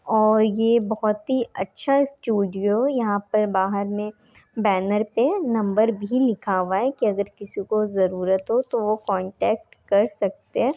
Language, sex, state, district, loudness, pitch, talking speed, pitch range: Hindi, female, Bihar, Darbhanga, -22 LUFS, 215 Hz, 160 wpm, 200-230 Hz